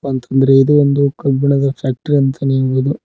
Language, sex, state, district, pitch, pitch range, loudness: Kannada, male, Karnataka, Koppal, 135 Hz, 135-140 Hz, -14 LUFS